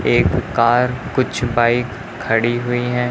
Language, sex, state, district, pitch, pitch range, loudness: Hindi, male, Uttar Pradesh, Lucknow, 120 Hz, 120-125 Hz, -18 LUFS